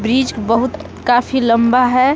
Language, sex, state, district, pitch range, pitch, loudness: Hindi, female, Jharkhand, Palamu, 230-260 Hz, 250 Hz, -15 LUFS